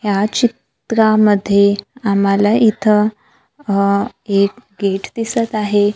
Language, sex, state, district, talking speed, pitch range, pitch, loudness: Marathi, female, Maharashtra, Gondia, 90 wpm, 200-220 Hz, 205 Hz, -15 LUFS